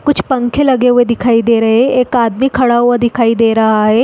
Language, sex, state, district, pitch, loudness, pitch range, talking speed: Hindi, female, Uttarakhand, Uttarkashi, 240 Hz, -11 LUFS, 230-255 Hz, 220 wpm